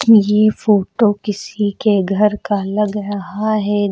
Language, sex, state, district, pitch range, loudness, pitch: Hindi, female, Uttar Pradesh, Lucknow, 205-215 Hz, -16 LUFS, 210 Hz